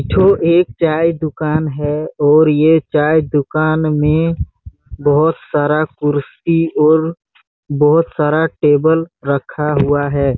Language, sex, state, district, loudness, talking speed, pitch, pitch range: Hindi, male, Chhattisgarh, Bastar, -14 LUFS, 115 wpm, 150 Hz, 145-160 Hz